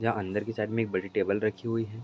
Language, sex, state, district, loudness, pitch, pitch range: Hindi, male, Uttar Pradesh, Etah, -30 LUFS, 110 Hz, 105-115 Hz